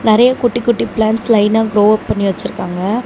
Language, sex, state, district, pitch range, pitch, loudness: Tamil, female, Tamil Nadu, Namakkal, 210-235 Hz, 220 Hz, -14 LUFS